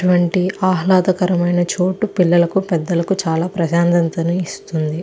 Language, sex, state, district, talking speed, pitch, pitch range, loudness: Telugu, female, Andhra Pradesh, Chittoor, 95 wpm, 175 Hz, 170-185 Hz, -17 LUFS